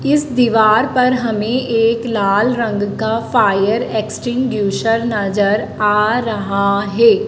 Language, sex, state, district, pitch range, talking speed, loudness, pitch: Hindi, female, Madhya Pradesh, Dhar, 205-240 Hz, 115 wpm, -15 LUFS, 225 Hz